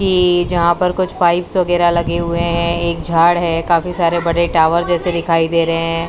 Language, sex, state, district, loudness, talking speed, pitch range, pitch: Hindi, female, Maharashtra, Mumbai Suburban, -15 LUFS, 205 wpm, 170-175 Hz, 170 Hz